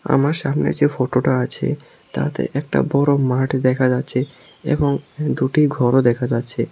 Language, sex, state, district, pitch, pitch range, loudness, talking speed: Bengali, male, Tripura, South Tripura, 130 Hz, 125-145 Hz, -19 LUFS, 145 wpm